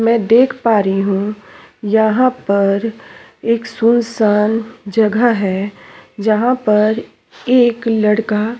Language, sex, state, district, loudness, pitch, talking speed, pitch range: Hindi, female, Chhattisgarh, Sukma, -15 LUFS, 220 Hz, 110 wpm, 210-230 Hz